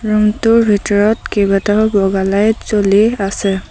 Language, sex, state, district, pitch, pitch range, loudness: Assamese, female, Assam, Sonitpur, 205 Hz, 195-215 Hz, -13 LUFS